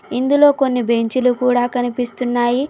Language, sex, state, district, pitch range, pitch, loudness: Telugu, female, Telangana, Mahabubabad, 245-255 Hz, 250 Hz, -16 LUFS